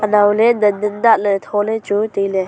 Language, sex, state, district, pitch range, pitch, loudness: Wancho, female, Arunachal Pradesh, Longding, 200-215 Hz, 205 Hz, -15 LUFS